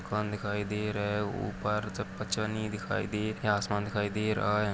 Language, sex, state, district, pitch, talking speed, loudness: Hindi, male, Chhattisgarh, Jashpur, 105 Hz, 190 wpm, -32 LUFS